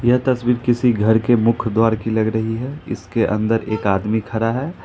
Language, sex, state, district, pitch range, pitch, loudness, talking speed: Hindi, male, Jharkhand, Ranchi, 110-120 Hz, 115 Hz, -18 LUFS, 220 wpm